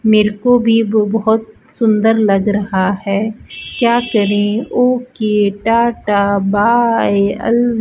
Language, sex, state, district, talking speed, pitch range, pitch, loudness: Hindi, female, Rajasthan, Bikaner, 115 wpm, 205-235 Hz, 220 Hz, -14 LUFS